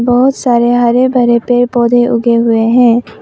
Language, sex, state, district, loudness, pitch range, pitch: Hindi, female, Arunachal Pradesh, Longding, -10 LUFS, 235-245 Hz, 240 Hz